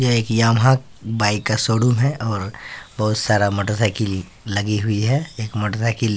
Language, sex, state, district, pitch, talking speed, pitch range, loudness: Hindi, male, Bihar, Katihar, 110 Hz, 195 wpm, 105-120 Hz, -20 LUFS